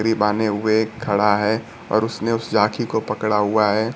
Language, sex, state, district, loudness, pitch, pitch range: Hindi, male, Bihar, Kaimur, -20 LUFS, 110 Hz, 105-110 Hz